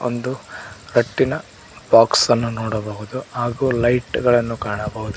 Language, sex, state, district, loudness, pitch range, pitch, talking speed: Kannada, male, Karnataka, Koppal, -19 LUFS, 110-120 Hz, 120 Hz, 105 wpm